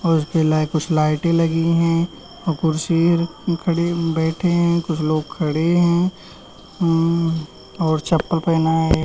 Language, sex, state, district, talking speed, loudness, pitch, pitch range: Hindi, male, Uttar Pradesh, Varanasi, 125 wpm, -19 LUFS, 165 Hz, 160-170 Hz